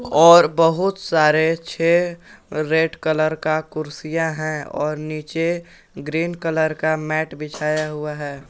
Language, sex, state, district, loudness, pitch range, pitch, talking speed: Hindi, male, Jharkhand, Garhwa, -20 LUFS, 155-165 Hz, 155 Hz, 125 wpm